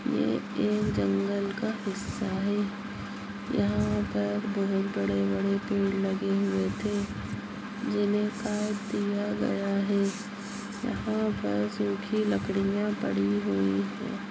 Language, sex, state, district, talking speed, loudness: Hindi, female, Bihar, Muzaffarpur, 115 wpm, -29 LUFS